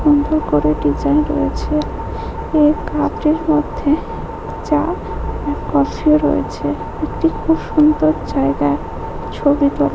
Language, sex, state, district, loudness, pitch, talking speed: Bengali, female, West Bengal, Jhargram, -17 LUFS, 295 Hz, 100 wpm